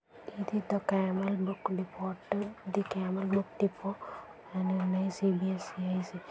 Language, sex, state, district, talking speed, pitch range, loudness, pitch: Telugu, female, Andhra Pradesh, Guntur, 85 wpm, 185-200 Hz, -33 LUFS, 190 Hz